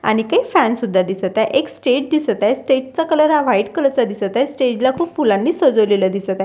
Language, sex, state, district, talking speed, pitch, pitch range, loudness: Marathi, female, Maharashtra, Washim, 240 wpm, 255 Hz, 205-305 Hz, -16 LUFS